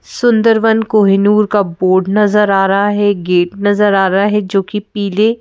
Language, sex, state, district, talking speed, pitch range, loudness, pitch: Hindi, female, Madhya Pradesh, Bhopal, 175 wpm, 195-210 Hz, -12 LUFS, 205 Hz